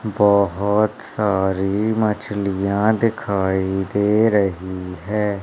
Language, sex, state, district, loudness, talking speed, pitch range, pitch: Hindi, male, Madhya Pradesh, Umaria, -19 LUFS, 75 wpm, 95-105 Hz, 100 Hz